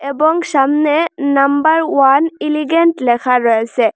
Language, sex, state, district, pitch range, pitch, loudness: Bengali, female, Assam, Hailakandi, 270-315 Hz, 285 Hz, -13 LUFS